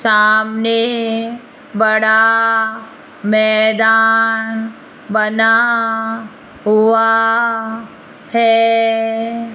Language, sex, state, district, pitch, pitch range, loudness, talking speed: Hindi, female, Rajasthan, Jaipur, 225 Hz, 220-230 Hz, -13 LUFS, 40 wpm